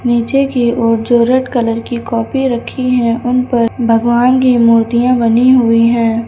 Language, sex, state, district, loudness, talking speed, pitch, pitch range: Hindi, female, Uttar Pradesh, Lucknow, -12 LUFS, 170 wpm, 240 Hz, 230-250 Hz